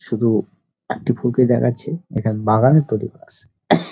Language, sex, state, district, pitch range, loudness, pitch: Bengali, male, West Bengal, Dakshin Dinajpur, 110-130 Hz, -18 LUFS, 120 Hz